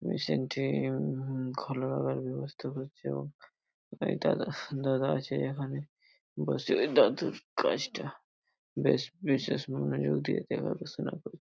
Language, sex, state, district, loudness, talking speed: Bengali, male, West Bengal, Paschim Medinipur, -32 LUFS, 120 wpm